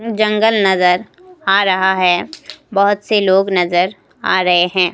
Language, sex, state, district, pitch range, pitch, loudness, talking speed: Hindi, female, Himachal Pradesh, Shimla, 180-210 Hz, 190 Hz, -14 LUFS, 145 wpm